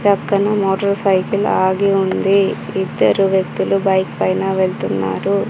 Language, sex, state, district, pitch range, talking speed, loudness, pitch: Telugu, female, Telangana, Komaram Bheem, 190-200 Hz, 110 wpm, -16 LUFS, 195 Hz